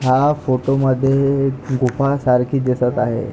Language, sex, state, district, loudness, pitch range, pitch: Marathi, male, Maharashtra, Pune, -17 LUFS, 125-135 Hz, 130 Hz